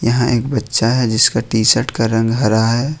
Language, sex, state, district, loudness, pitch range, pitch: Hindi, male, Jharkhand, Ranchi, -15 LUFS, 110-125 Hz, 115 Hz